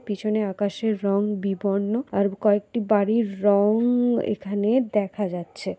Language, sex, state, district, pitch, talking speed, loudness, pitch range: Bengali, female, West Bengal, Paschim Medinipur, 205 Hz, 115 wpm, -23 LUFS, 200-220 Hz